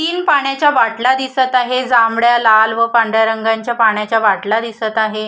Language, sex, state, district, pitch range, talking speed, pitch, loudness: Marathi, female, Maharashtra, Solapur, 220-255 Hz, 150 wpm, 230 Hz, -14 LUFS